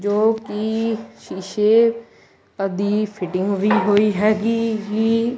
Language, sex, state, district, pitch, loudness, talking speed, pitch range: Punjabi, male, Punjab, Kapurthala, 215 Hz, -19 LUFS, 110 wpm, 205-225 Hz